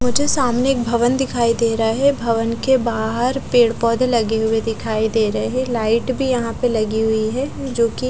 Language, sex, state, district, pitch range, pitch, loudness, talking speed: Hindi, female, Punjab, Fazilka, 225-255 Hz, 235 Hz, -18 LUFS, 205 wpm